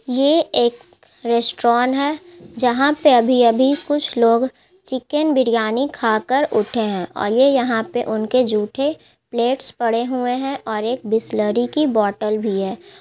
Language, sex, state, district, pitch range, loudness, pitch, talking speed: Hindi, male, Bihar, Gaya, 225-275 Hz, -18 LUFS, 245 Hz, 145 wpm